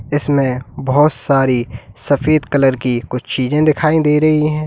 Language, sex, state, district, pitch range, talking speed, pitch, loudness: Hindi, male, Uttar Pradesh, Lalitpur, 125-150 Hz, 155 wpm, 140 Hz, -15 LUFS